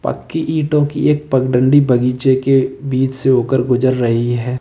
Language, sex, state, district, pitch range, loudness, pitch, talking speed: Hindi, male, Uttar Pradesh, Lalitpur, 125-145 Hz, -15 LUFS, 130 Hz, 170 wpm